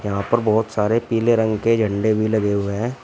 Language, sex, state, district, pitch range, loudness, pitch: Hindi, male, Uttar Pradesh, Shamli, 105-115 Hz, -19 LUFS, 110 Hz